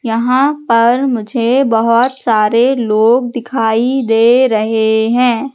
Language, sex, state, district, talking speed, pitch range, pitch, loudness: Hindi, female, Madhya Pradesh, Katni, 110 wpm, 225-255 Hz, 235 Hz, -12 LUFS